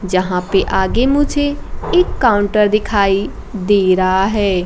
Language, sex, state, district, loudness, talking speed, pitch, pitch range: Hindi, female, Bihar, Kaimur, -15 LUFS, 130 wpm, 200 Hz, 190-230 Hz